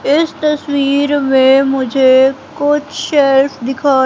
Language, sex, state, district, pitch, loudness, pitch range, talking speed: Hindi, female, Madhya Pradesh, Katni, 275 Hz, -12 LUFS, 270-290 Hz, 105 wpm